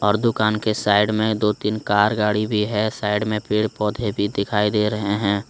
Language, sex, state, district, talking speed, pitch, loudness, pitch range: Hindi, male, Jharkhand, Deoghar, 220 wpm, 105 Hz, -20 LUFS, 105-110 Hz